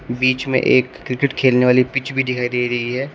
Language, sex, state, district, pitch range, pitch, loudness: Hindi, male, Uttar Pradesh, Shamli, 125-135 Hz, 130 Hz, -17 LUFS